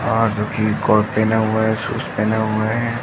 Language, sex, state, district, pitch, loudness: Hindi, male, Uttar Pradesh, Jalaun, 110 Hz, -18 LUFS